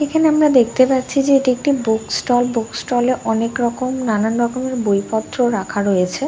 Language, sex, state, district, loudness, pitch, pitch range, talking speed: Bengali, female, West Bengal, Dakshin Dinajpur, -17 LUFS, 245 Hz, 225-260 Hz, 210 wpm